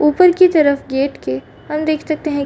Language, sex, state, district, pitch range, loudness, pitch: Hindi, female, Chhattisgarh, Rajnandgaon, 275-310 Hz, -15 LUFS, 300 Hz